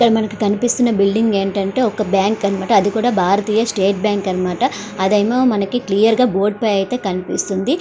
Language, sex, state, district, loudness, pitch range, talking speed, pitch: Telugu, female, Andhra Pradesh, Srikakulam, -16 LUFS, 195-230 Hz, 170 wpm, 210 Hz